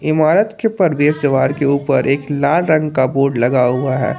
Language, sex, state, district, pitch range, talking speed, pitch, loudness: Hindi, male, Jharkhand, Palamu, 130-155 Hz, 200 wpm, 145 Hz, -15 LUFS